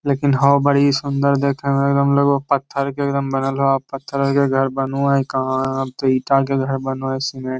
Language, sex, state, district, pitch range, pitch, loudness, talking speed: Magahi, male, Bihar, Lakhisarai, 135-140 Hz, 140 Hz, -18 LUFS, 245 wpm